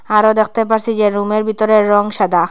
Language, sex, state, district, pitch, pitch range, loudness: Bengali, female, Assam, Hailakandi, 215 Hz, 205-220 Hz, -14 LUFS